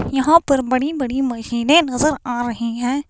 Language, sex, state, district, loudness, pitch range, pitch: Hindi, female, Himachal Pradesh, Shimla, -18 LUFS, 245-290 Hz, 265 Hz